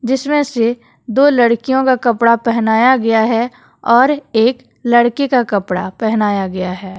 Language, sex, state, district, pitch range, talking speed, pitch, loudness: Hindi, female, Jharkhand, Deoghar, 220-255 Hz, 145 wpm, 235 Hz, -14 LUFS